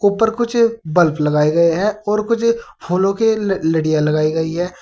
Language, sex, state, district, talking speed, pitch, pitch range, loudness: Hindi, male, Uttar Pradesh, Saharanpur, 175 wpm, 185 Hz, 160-220 Hz, -17 LUFS